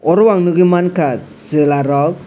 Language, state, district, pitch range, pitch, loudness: Kokborok, Tripura, West Tripura, 145-180 Hz, 170 Hz, -13 LUFS